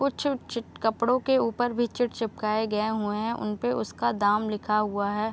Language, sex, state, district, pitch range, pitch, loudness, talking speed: Hindi, female, Uttar Pradesh, Deoria, 210-240 Hz, 220 Hz, -27 LUFS, 190 wpm